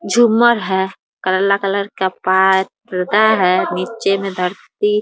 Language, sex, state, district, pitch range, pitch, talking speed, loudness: Hindi, female, Bihar, Muzaffarpur, 185-210 Hz, 195 Hz, 130 wpm, -16 LUFS